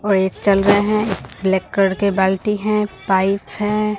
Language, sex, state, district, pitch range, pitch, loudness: Hindi, female, Bihar, Katihar, 195-210 Hz, 200 Hz, -18 LUFS